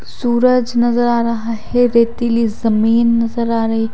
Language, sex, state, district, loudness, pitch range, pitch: Hindi, female, Odisha, Khordha, -15 LUFS, 230-240 Hz, 235 Hz